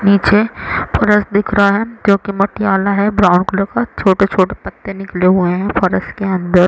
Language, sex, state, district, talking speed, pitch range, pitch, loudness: Hindi, female, Chhattisgarh, Raigarh, 180 wpm, 190-205 Hz, 200 Hz, -14 LUFS